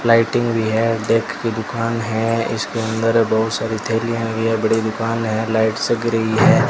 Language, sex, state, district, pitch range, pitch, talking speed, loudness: Hindi, male, Rajasthan, Bikaner, 110-115 Hz, 115 Hz, 190 wpm, -19 LUFS